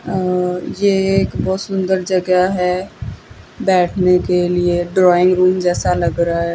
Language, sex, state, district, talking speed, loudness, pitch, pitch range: Hindi, female, Chandigarh, Chandigarh, 145 wpm, -16 LUFS, 180 Hz, 180-190 Hz